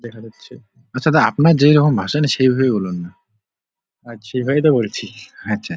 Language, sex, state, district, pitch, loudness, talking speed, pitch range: Bengali, male, West Bengal, Purulia, 125 Hz, -16 LUFS, 145 wpm, 105-145 Hz